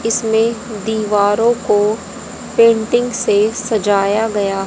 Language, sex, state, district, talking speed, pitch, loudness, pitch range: Hindi, female, Haryana, Jhajjar, 90 wpm, 220 Hz, -15 LUFS, 205-230 Hz